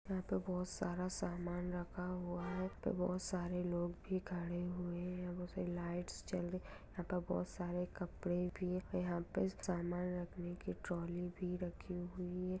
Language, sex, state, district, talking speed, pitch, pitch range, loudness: Hindi, female, Bihar, Darbhanga, 180 wpm, 180 Hz, 175-180 Hz, -43 LUFS